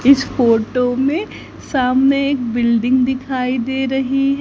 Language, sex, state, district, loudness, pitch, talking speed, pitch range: Hindi, female, Haryana, Charkhi Dadri, -16 LUFS, 260 Hz, 120 wpm, 250-275 Hz